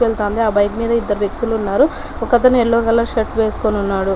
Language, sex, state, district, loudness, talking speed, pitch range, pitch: Telugu, female, Telangana, Nalgonda, -16 LUFS, 190 wpm, 205-235 Hz, 225 Hz